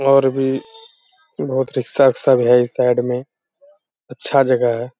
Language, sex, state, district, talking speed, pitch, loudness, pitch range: Hindi, male, Bihar, Bhagalpur, 145 wpm, 135 Hz, -17 LUFS, 125-160 Hz